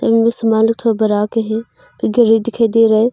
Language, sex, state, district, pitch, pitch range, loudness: Hindi, female, Arunachal Pradesh, Longding, 225 Hz, 220-230 Hz, -15 LUFS